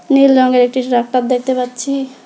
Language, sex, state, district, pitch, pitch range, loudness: Bengali, female, West Bengal, Alipurduar, 255 Hz, 250-270 Hz, -14 LUFS